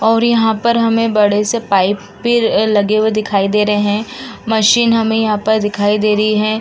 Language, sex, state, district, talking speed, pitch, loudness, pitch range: Hindi, female, Uttar Pradesh, Jalaun, 190 wpm, 215 Hz, -14 LUFS, 210-230 Hz